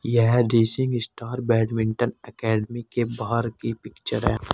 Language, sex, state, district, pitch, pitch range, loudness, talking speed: Hindi, male, Uttar Pradesh, Saharanpur, 115 Hz, 110-120 Hz, -24 LUFS, 145 wpm